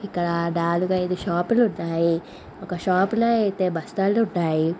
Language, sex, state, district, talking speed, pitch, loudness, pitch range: Telugu, female, Andhra Pradesh, Visakhapatnam, 125 wpm, 180 Hz, -23 LUFS, 170-205 Hz